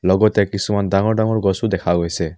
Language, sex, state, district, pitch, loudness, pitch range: Assamese, male, Assam, Kamrup Metropolitan, 100 Hz, -18 LUFS, 90-110 Hz